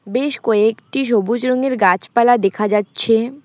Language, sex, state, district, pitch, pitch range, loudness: Bengali, female, West Bengal, Alipurduar, 230 Hz, 210-255 Hz, -16 LUFS